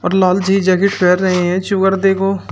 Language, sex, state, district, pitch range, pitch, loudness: Hindi, male, Uttar Pradesh, Shamli, 185-195 Hz, 190 Hz, -14 LUFS